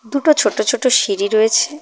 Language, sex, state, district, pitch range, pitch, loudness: Bengali, female, West Bengal, Cooch Behar, 255-400 Hz, 300 Hz, -15 LUFS